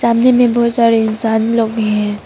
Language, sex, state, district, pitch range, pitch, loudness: Hindi, female, Arunachal Pradesh, Papum Pare, 220-235 Hz, 230 Hz, -13 LUFS